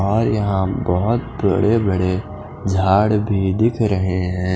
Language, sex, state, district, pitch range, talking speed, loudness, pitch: Hindi, male, Punjab, Fazilka, 95-110 Hz, 145 wpm, -18 LUFS, 100 Hz